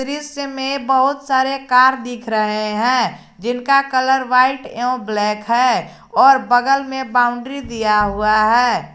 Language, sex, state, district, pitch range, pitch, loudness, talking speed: Hindi, male, Jharkhand, Garhwa, 235-265 Hz, 255 Hz, -16 LUFS, 135 wpm